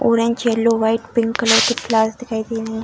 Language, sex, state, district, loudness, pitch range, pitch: Hindi, female, Bihar, Darbhanga, -17 LUFS, 225-235 Hz, 230 Hz